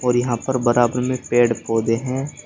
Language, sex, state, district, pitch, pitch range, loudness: Hindi, male, Uttar Pradesh, Shamli, 120 Hz, 120-130 Hz, -20 LUFS